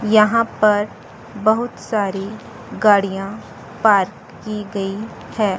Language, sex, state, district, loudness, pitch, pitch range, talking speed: Hindi, female, Chandigarh, Chandigarh, -19 LUFS, 210 Hz, 200-215 Hz, 95 wpm